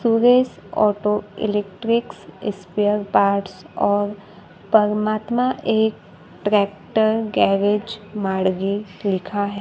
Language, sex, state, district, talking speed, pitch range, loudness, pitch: Hindi, female, Maharashtra, Gondia, 80 wpm, 200-220 Hz, -20 LUFS, 205 Hz